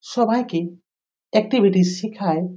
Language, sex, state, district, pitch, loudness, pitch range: Bengali, female, West Bengal, Jhargram, 195 Hz, -20 LUFS, 175-215 Hz